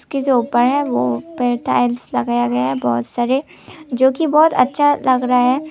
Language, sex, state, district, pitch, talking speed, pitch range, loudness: Hindi, female, Tripura, Unakoti, 250 Hz, 190 wpm, 185-280 Hz, -17 LUFS